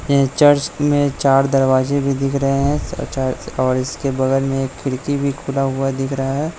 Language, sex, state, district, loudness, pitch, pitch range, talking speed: Hindi, male, Jharkhand, Sahebganj, -18 LUFS, 135 Hz, 135-140 Hz, 210 wpm